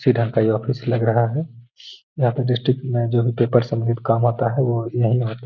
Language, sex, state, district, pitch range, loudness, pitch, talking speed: Hindi, male, Bihar, Gaya, 115-125 Hz, -20 LUFS, 120 Hz, 230 wpm